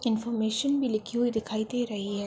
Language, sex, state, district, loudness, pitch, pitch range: Hindi, female, Uttar Pradesh, Ghazipur, -29 LUFS, 225 Hz, 215-240 Hz